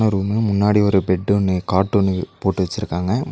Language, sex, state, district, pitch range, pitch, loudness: Tamil, male, Tamil Nadu, Nilgiris, 95-105 Hz, 100 Hz, -19 LUFS